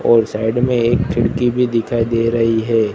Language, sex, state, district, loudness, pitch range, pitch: Hindi, male, Gujarat, Gandhinagar, -16 LUFS, 115-120 Hz, 115 Hz